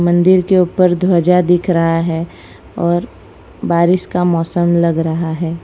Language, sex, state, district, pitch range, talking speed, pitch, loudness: Hindi, female, Gujarat, Valsad, 165-180 Hz, 150 wpm, 175 Hz, -14 LUFS